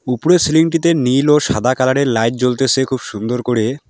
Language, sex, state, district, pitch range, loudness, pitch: Bengali, male, West Bengal, Alipurduar, 125-150 Hz, -15 LUFS, 130 Hz